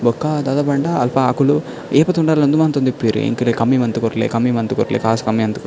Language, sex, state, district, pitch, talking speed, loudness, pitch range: Tulu, male, Karnataka, Dakshina Kannada, 125 Hz, 210 wpm, -17 LUFS, 115-145 Hz